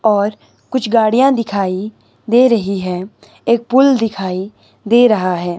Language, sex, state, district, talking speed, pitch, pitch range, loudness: Hindi, male, Himachal Pradesh, Shimla, 140 wpm, 215 Hz, 195-235 Hz, -15 LUFS